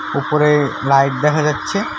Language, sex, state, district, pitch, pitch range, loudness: Bengali, male, West Bengal, Alipurduar, 145 Hz, 140-150 Hz, -16 LUFS